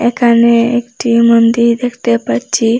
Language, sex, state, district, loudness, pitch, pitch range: Bengali, female, Assam, Hailakandi, -11 LUFS, 235 Hz, 230-240 Hz